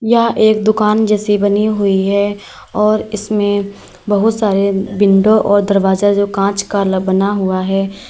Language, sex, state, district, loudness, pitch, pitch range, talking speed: Hindi, female, Uttar Pradesh, Lalitpur, -14 LUFS, 205 Hz, 195-215 Hz, 150 wpm